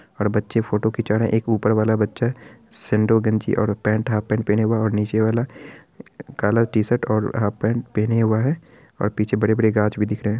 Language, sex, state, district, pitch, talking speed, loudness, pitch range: Hindi, male, Bihar, Araria, 110 Hz, 225 wpm, -21 LUFS, 105-115 Hz